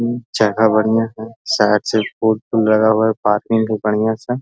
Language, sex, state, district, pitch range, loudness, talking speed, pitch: Hindi, male, Bihar, Jahanabad, 110-115 Hz, -16 LUFS, 110 wpm, 110 Hz